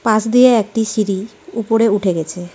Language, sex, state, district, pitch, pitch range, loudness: Bengali, female, West Bengal, Darjeeling, 220 Hz, 195-225 Hz, -15 LUFS